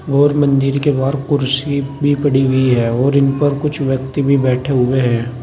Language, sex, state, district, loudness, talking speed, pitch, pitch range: Hindi, male, Uttar Pradesh, Saharanpur, -15 LUFS, 200 wpm, 135 Hz, 130-140 Hz